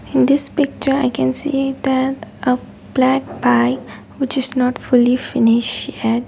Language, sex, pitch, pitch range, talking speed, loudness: English, female, 260 Hz, 240-270 Hz, 155 wpm, -17 LUFS